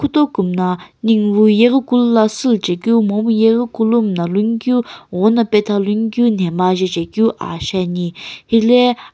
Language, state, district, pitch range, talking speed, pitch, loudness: Sumi, Nagaland, Kohima, 190-235 Hz, 165 wpm, 220 Hz, -15 LUFS